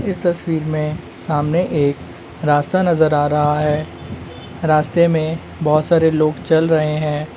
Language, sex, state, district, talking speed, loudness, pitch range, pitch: Magahi, male, Bihar, Gaya, 155 wpm, -17 LUFS, 150-160 Hz, 155 Hz